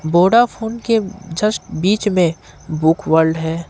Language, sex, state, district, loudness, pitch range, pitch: Hindi, male, Jharkhand, Ranchi, -17 LUFS, 160-215 Hz, 180 Hz